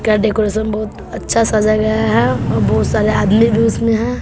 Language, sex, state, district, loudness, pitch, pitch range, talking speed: Hindi, female, Bihar, West Champaran, -14 LUFS, 215 Hz, 205-225 Hz, 200 wpm